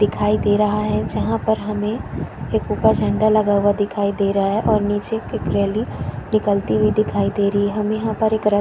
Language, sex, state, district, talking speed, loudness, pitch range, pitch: Hindi, female, Chhattisgarh, Korba, 225 wpm, -19 LUFS, 200-215 Hz, 205 Hz